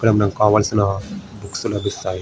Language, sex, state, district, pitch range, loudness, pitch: Telugu, male, Andhra Pradesh, Srikakulam, 100-105 Hz, -19 LUFS, 105 Hz